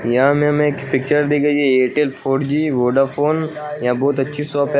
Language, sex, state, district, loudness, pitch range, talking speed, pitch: Hindi, male, Bihar, Katihar, -17 LUFS, 135-150 Hz, 210 wpm, 145 Hz